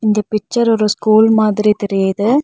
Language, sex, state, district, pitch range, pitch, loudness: Tamil, female, Tamil Nadu, Nilgiris, 210-220 Hz, 215 Hz, -14 LUFS